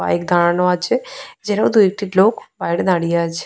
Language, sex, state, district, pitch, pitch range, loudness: Bengali, female, West Bengal, Purulia, 180 Hz, 170-205 Hz, -17 LUFS